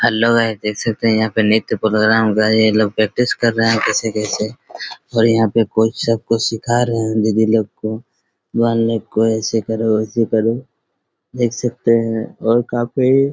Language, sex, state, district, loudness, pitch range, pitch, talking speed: Hindi, male, Chhattisgarh, Raigarh, -16 LUFS, 110-115 Hz, 115 Hz, 180 wpm